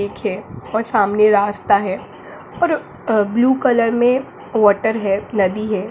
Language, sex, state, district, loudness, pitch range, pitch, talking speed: Hindi, female, Jharkhand, Jamtara, -17 LUFS, 205-235 Hz, 215 Hz, 130 wpm